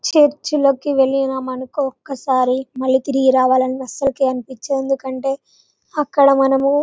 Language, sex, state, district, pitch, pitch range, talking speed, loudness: Telugu, female, Telangana, Karimnagar, 270 Hz, 260-280 Hz, 140 wpm, -17 LUFS